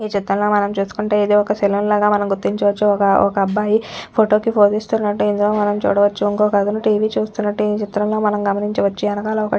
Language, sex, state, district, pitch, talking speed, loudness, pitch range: Telugu, female, Telangana, Nalgonda, 210 Hz, 180 wpm, -17 LUFS, 205-210 Hz